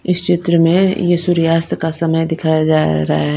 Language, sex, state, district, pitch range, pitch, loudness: Hindi, female, Bihar, Patna, 160-175 Hz, 165 Hz, -15 LUFS